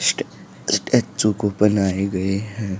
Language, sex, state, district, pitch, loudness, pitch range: Hindi, male, Haryana, Rohtak, 100 Hz, -21 LUFS, 95-105 Hz